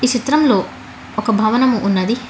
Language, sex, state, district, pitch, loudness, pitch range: Telugu, female, Telangana, Hyderabad, 235 Hz, -16 LUFS, 215-250 Hz